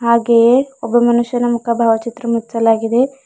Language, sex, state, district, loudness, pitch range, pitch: Kannada, female, Karnataka, Bidar, -14 LUFS, 230-240 Hz, 235 Hz